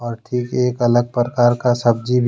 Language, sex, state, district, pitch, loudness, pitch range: Hindi, male, Jharkhand, Deoghar, 120 Hz, -17 LUFS, 120-125 Hz